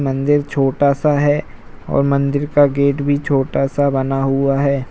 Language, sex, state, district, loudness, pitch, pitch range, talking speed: Hindi, male, Uttar Pradesh, Jalaun, -16 LUFS, 140 Hz, 135-145 Hz, 185 wpm